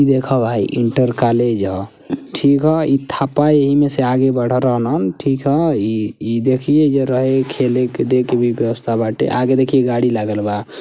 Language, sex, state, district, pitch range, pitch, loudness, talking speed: Bhojpuri, male, Uttar Pradesh, Gorakhpur, 115-135 Hz, 125 Hz, -16 LUFS, 170 wpm